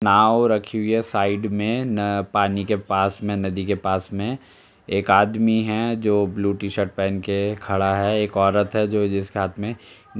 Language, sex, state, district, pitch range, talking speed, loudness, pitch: Hindi, male, Uttar Pradesh, Jalaun, 100-110 Hz, 205 wpm, -21 LUFS, 100 Hz